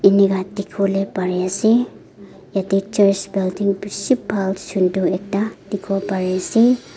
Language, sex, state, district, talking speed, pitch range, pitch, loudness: Nagamese, female, Nagaland, Dimapur, 130 wpm, 190-200 Hz, 195 Hz, -19 LUFS